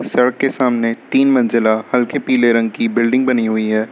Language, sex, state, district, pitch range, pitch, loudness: Hindi, male, Uttar Pradesh, Lucknow, 115-130 Hz, 120 Hz, -15 LUFS